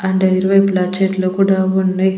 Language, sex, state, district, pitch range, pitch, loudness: Telugu, female, Andhra Pradesh, Annamaya, 185-195 Hz, 190 Hz, -15 LUFS